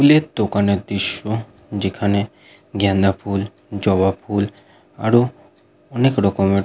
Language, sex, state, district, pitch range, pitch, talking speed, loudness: Bengali, male, West Bengal, Purulia, 100-110 Hz, 100 Hz, 100 wpm, -19 LUFS